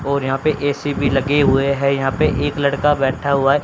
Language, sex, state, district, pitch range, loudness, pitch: Hindi, male, Haryana, Rohtak, 135-145 Hz, -17 LUFS, 140 Hz